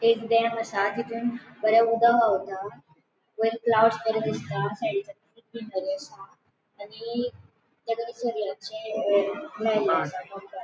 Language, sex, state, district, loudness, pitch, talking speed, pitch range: Konkani, female, Goa, North and South Goa, -26 LUFS, 220 Hz, 85 wpm, 200-230 Hz